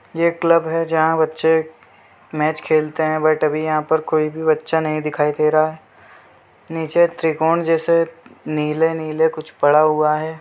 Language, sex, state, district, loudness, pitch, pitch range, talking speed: Hindi, male, Chhattisgarh, Bilaspur, -18 LUFS, 155 Hz, 155-160 Hz, 155 wpm